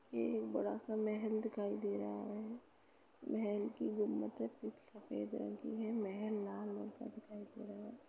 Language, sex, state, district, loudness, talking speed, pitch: Hindi, female, Uttar Pradesh, Etah, -42 LUFS, 180 wpm, 210 Hz